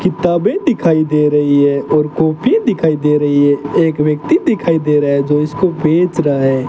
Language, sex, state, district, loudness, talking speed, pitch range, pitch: Hindi, male, Rajasthan, Bikaner, -13 LUFS, 195 wpm, 145-175 Hz, 155 Hz